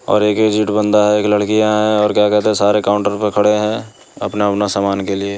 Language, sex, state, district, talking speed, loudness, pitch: Hindi, male, Bihar, Sitamarhi, 100 wpm, -15 LUFS, 105 Hz